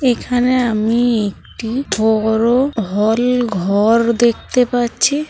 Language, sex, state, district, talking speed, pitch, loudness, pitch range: Bengali, female, West Bengal, Malda, 90 wpm, 235 Hz, -15 LUFS, 220-250 Hz